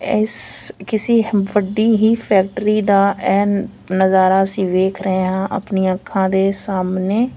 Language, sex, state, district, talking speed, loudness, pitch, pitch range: Punjabi, female, Punjab, Fazilka, 140 wpm, -17 LUFS, 195 Hz, 190-215 Hz